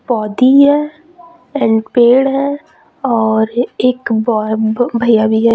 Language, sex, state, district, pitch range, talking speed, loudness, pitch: Hindi, female, Chhattisgarh, Raipur, 220-280 Hz, 130 wpm, -13 LUFS, 245 Hz